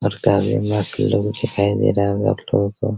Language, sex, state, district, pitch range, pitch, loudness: Hindi, male, Bihar, Araria, 100-115 Hz, 105 Hz, -19 LUFS